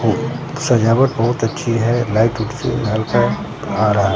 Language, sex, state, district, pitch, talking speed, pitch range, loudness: Hindi, male, Bihar, Katihar, 115 Hz, 115 wpm, 110-125 Hz, -17 LUFS